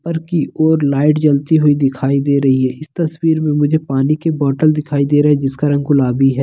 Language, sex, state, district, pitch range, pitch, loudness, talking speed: Hindi, male, Bihar, Begusarai, 140-155 Hz, 145 Hz, -14 LUFS, 235 wpm